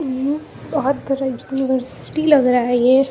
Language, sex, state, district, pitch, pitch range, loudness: Hindi, female, Bihar, Muzaffarpur, 270 Hz, 255-280 Hz, -18 LUFS